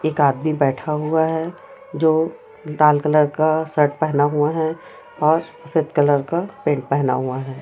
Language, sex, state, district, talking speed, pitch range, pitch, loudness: Hindi, female, Chhattisgarh, Raipur, 165 wpm, 145-160 Hz, 155 Hz, -19 LUFS